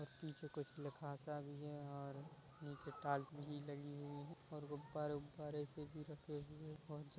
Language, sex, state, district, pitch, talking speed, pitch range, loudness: Hindi, male, Chhattisgarh, Kabirdham, 145 Hz, 160 wpm, 145-150 Hz, -50 LUFS